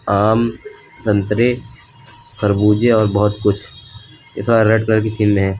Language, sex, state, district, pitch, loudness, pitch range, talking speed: Hindi, male, Uttar Pradesh, Lucknow, 110 Hz, -16 LUFS, 105-120 Hz, 105 wpm